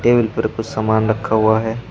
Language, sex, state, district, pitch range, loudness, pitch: Hindi, male, Uttar Pradesh, Shamli, 110-115 Hz, -17 LUFS, 110 Hz